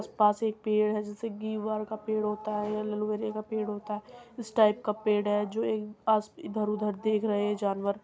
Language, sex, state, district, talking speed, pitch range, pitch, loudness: Hindi, female, Uttar Pradesh, Muzaffarnagar, 215 wpm, 210-215 Hz, 215 Hz, -30 LUFS